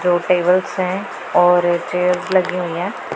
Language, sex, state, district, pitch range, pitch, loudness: Hindi, female, Punjab, Pathankot, 175-185 Hz, 180 Hz, -17 LUFS